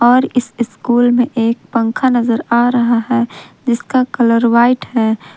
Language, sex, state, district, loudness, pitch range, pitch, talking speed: Hindi, female, Jharkhand, Palamu, -14 LUFS, 230-245 Hz, 235 Hz, 155 wpm